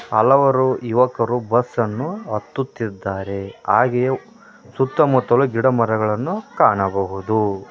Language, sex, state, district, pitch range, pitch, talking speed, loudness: Kannada, male, Karnataka, Koppal, 105-130 Hz, 120 Hz, 70 wpm, -19 LUFS